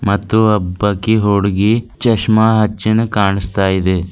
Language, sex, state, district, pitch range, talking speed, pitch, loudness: Kannada, female, Karnataka, Bidar, 100-110 Hz, 100 wpm, 105 Hz, -14 LUFS